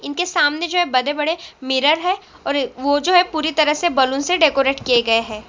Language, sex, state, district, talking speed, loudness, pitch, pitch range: Hindi, female, Chhattisgarh, Sukma, 230 wpm, -18 LUFS, 295 Hz, 270-345 Hz